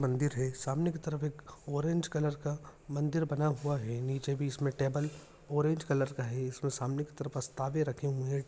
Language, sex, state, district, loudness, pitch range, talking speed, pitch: Hindi, male, Rajasthan, Nagaur, -34 LUFS, 135-150 Hz, 205 wpm, 145 Hz